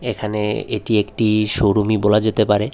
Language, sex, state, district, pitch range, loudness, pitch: Bengali, male, Tripura, West Tripura, 105-110 Hz, -18 LUFS, 105 Hz